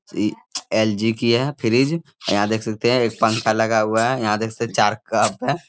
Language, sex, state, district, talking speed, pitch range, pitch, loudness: Hindi, male, Bihar, Jamui, 210 wpm, 110-120 Hz, 115 Hz, -20 LUFS